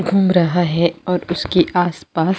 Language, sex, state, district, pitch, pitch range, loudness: Hindi, female, Chhattisgarh, Jashpur, 175 Hz, 170-185 Hz, -17 LUFS